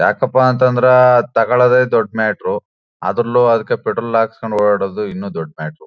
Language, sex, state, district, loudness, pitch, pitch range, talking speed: Kannada, male, Karnataka, Chamarajanagar, -15 LUFS, 125 Hz, 115-130 Hz, 155 wpm